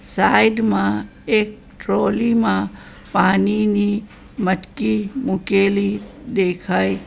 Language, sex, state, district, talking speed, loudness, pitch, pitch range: Gujarati, female, Gujarat, Valsad, 85 wpm, -19 LUFS, 200 Hz, 180-215 Hz